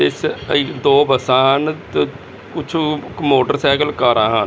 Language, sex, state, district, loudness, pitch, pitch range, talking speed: Punjabi, male, Chandigarh, Chandigarh, -16 LUFS, 140 Hz, 130-150 Hz, 150 wpm